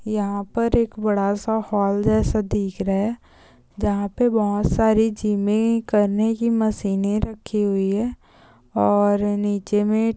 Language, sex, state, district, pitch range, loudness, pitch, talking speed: Hindi, female, Uttar Pradesh, Gorakhpur, 200-220 Hz, -21 LUFS, 210 Hz, 145 wpm